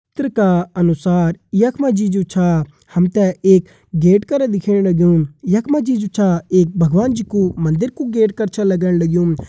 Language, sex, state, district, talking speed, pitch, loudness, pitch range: Hindi, male, Uttarakhand, Uttarkashi, 175 wpm, 190 Hz, -16 LUFS, 175-210 Hz